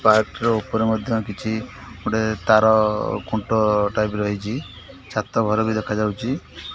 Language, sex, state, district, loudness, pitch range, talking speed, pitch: Odia, male, Odisha, Khordha, -21 LUFS, 105-110 Hz, 125 wpm, 110 Hz